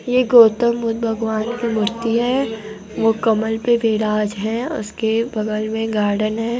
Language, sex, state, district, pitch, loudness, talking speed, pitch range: Hindi, female, Andhra Pradesh, Anantapur, 225 Hz, -18 LUFS, 155 wpm, 215-235 Hz